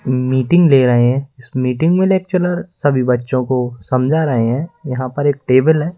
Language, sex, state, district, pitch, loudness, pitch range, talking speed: Hindi, male, Madhya Pradesh, Bhopal, 130 Hz, -15 LUFS, 125-160 Hz, 190 wpm